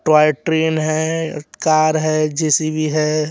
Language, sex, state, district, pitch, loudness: Hindi, male, Bihar, West Champaran, 155 Hz, -17 LUFS